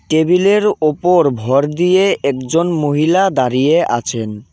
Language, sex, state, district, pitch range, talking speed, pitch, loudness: Bengali, male, West Bengal, Cooch Behar, 130-175 Hz, 105 wpm, 155 Hz, -14 LUFS